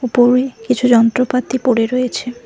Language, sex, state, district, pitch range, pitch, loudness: Bengali, female, West Bengal, Cooch Behar, 240-255 Hz, 250 Hz, -15 LUFS